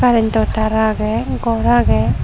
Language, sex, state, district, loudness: Chakma, female, Tripura, Dhalai, -16 LUFS